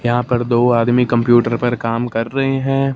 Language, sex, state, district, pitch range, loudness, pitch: Hindi, male, Punjab, Fazilka, 120-125 Hz, -16 LUFS, 120 Hz